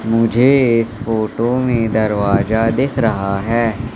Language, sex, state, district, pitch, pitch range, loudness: Hindi, male, Madhya Pradesh, Katni, 115 Hz, 110-115 Hz, -16 LUFS